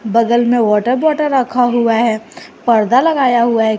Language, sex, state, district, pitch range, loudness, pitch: Hindi, female, Jharkhand, Garhwa, 225-255 Hz, -13 LUFS, 240 Hz